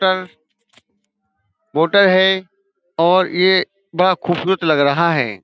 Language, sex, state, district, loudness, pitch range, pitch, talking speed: Hindi, male, Uttar Pradesh, Budaun, -16 LUFS, 160-190 Hz, 185 Hz, 100 wpm